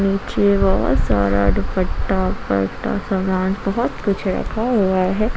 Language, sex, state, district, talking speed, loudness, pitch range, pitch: Hindi, female, Jharkhand, Ranchi, 125 wpm, -19 LUFS, 185-200 Hz, 190 Hz